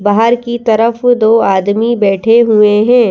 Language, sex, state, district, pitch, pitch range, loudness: Hindi, female, Madhya Pradesh, Bhopal, 225 Hz, 210-235 Hz, -10 LUFS